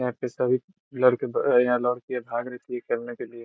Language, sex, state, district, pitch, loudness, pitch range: Hindi, male, Bihar, Saran, 125 Hz, -25 LUFS, 120-125 Hz